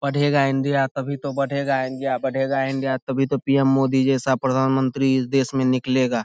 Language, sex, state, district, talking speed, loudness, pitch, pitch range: Hindi, male, Bihar, Saharsa, 175 wpm, -21 LUFS, 135 Hz, 130-140 Hz